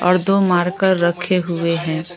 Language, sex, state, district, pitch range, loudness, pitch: Hindi, female, Bihar, Patna, 170-185 Hz, -17 LUFS, 175 Hz